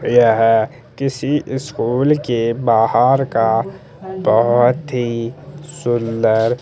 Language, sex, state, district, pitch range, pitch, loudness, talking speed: Hindi, male, Chandigarh, Chandigarh, 115-135 Hz, 120 Hz, -16 LUFS, 80 wpm